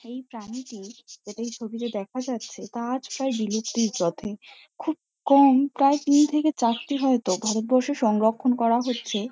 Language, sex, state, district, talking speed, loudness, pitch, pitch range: Bengali, female, West Bengal, Kolkata, 150 wpm, -24 LUFS, 240 Hz, 220-265 Hz